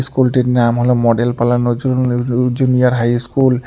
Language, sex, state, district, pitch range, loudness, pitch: Bengali, male, West Bengal, Alipurduar, 120-125 Hz, -14 LUFS, 125 Hz